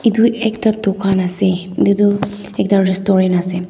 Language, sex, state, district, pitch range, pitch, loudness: Nagamese, female, Nagaland, Dimapur, 185-205 Hz, 195 Hz, -16 LUFS